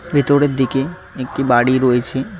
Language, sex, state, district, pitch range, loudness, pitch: Bengali, male, West Bengal, Cooch Behar, 130-145 Hz, -16 LUFS, 135 Hz